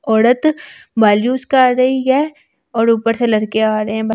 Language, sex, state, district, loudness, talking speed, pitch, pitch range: Hindi, female, Delhi, New Delhi, -15 LUFS, 175 wpm, 235 Hz, 220-260 Hz